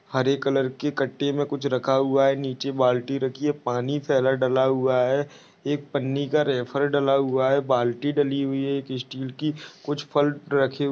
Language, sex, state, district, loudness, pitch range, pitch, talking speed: Hindi, male, Maharashtra, Pune, -24 LUFS, 130-145 Hz, 135 Hz, 200 wpm